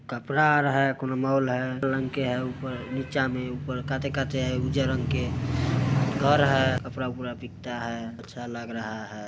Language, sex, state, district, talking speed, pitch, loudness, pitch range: Hindi, male, Bihar, Muzaffarpur, 170 wpm, 130 Hz, -27 LUFS, 125-135 Hz